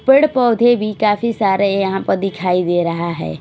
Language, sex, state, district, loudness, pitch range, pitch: Hindi, female, Chhattisgarh, Raipur, -16 LUFS, 180-235 Hz, 195 Hz